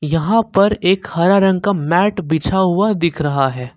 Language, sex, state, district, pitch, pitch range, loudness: Hindi, male, Jharkhand, Ranchi, 185 Hz, 160-200 Hz, -15 LUFS